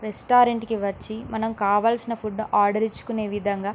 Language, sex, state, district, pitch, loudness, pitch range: Telugu, female, Andhra Pradesh, Srikakulam, 220 Hz, -23 LUFS, 205-225 Hz